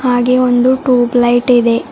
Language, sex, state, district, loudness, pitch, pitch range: Kannada, female, Karnataka, Bidar, -11 LUFS, 245 Hz, 240-255 Hz